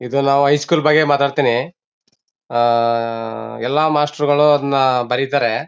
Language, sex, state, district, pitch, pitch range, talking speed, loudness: Kannada, male, Karnataka, Mysore, 140 Hz, 120-145 Hz, 115 wpm, -16 LUFS